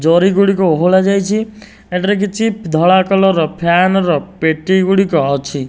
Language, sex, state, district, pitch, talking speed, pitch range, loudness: Odia, male, Odisha, Nuapada, 190 Hz, 145 wpm, 165-195 Hz, -13 LUFS